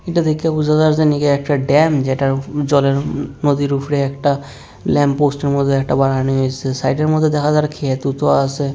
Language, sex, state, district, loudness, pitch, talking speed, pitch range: Bengali, male, Tripura, West Tripura, -16 LUFS, 140 Hz, 165 wpm, 135-150 Hz